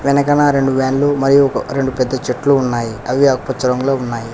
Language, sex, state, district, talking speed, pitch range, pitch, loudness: Telugu, male, Telangana, Hyderabad, 165 wpm, 125-140 Hz, 135 Hz, -15 LUFS